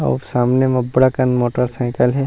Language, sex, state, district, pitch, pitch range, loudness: Chhattisgarhi, male, Chhattisgarh, Rajnandgaon, 125 Hz, 120-130 Hz, -17 LUFS